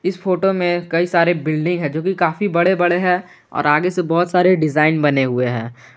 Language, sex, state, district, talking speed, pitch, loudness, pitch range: Hindi, male, Jharkhand, Garhwa, 220 wpm, 175 Hz, -17 LUFS, 155-180 Hz